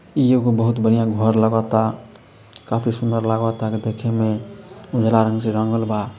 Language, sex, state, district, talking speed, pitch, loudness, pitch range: Bhojpuri, male, Bihar, Sitamarhi, 165 wpm, 110 Hz, -19 LUFS, 110-115 Hz